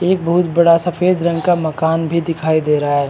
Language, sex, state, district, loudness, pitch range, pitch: Hindi, male, Maharashtra, Chandrapur, -15 LUFS, 160-175 Hz, 165 Hz